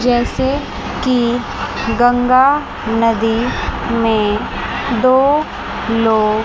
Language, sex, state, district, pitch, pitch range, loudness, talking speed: Hindi, female, Chandigarh, Chandigarh, 240 Hz, 225-255 Hz, -15 LUFS, 65 wpm